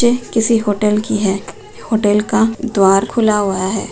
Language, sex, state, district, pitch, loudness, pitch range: Hindi, female, Bihar, Gaya, 210 Hz, -15 LUFS, 200-225 Hz